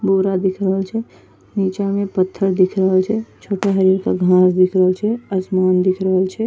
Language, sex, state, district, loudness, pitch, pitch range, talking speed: Angika, female, Bihar, Bhagalpur, -17 LUFS, 190 Hz, 185-200 Hz, 185 wpm